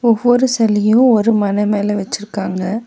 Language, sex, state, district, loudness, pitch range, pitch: Tamil, female, Tamil Nadu, Nilgiris, -15 LUFS, 205-235 Hz, 215 Hz